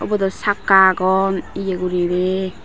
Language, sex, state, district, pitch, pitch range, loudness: Chakma, female, Tripura, Dhalai, 190 Hz, 185-195 Hz, -17 LUFS